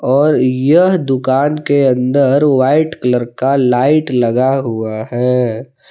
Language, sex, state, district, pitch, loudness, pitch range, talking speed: Hindi, male, Jharkhand, Palamu, 130 Hz, -13 LUFS, 125-145 Hz, 120 wpm